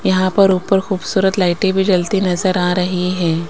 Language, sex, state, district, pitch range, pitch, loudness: Hindi, female, Rajasthan, Jaipur, 180-195 Hz, 185 Hz, -16 LUFS